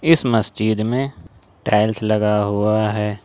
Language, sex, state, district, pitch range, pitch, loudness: Hindi, male, Jharkhand, Ranchi, 105-115 Hz, 110 Hz, -19 LUFS